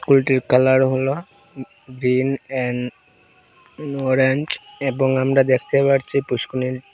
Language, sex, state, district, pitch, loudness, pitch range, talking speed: Bengali, male, Assam, Hailakandi, 130 Hz, -19 LUFS, 130-135 Hz, 105 wpm